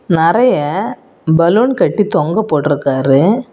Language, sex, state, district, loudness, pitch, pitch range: Tamil, female, Tamil Nadu, Kanyakumari, -13 LUFS, 170 Hz, 150-220 Hz